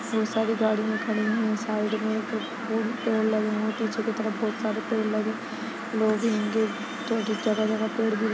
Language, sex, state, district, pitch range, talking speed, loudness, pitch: Hindi, male, Chhattisgarh, Bastar, 215-225 Hz, 180 wpm, -27 LUFS, 220 Hz